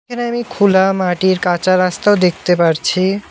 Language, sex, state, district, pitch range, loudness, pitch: Bengali, male, West Bengal, Alipurduar, 180-205 Hz, -14 LUFS, 185 Hz